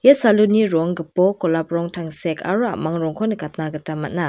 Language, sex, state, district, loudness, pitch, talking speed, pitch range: Garo, female, Meghalaya, West Garo Hills, -19 LUFS, 170 Hz, 180 wpm, 160-210 Hz